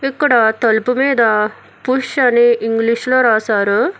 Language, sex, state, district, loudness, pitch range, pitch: Telugu, female, Telangana, Hyderabad, -14 LUFS, 220-260 Hz, 240 Hz